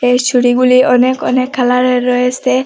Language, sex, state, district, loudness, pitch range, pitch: Bengali, female, Assam, Hailakandi, -11 LUFS, 250-255 Hz, 250 Hz